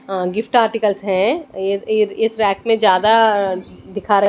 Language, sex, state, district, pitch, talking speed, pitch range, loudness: Hindi, female, Odisha, Nuapada, 205 Hz, 110 wpm, 195-225 Hz, -16 LUFS